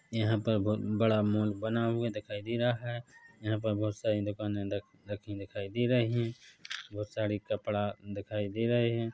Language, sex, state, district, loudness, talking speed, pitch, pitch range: Hindi, male, Chhattisgarh, Bilaspur, -33 LUFS, 185 wpm, 105 Hz, 105-115 Hz